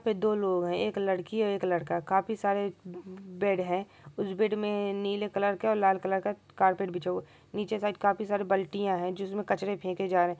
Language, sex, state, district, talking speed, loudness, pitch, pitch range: Maithili, male, Bihar, Supaul, 225 wpm, -30 LUFS, 195 Hz, 185-205 Hz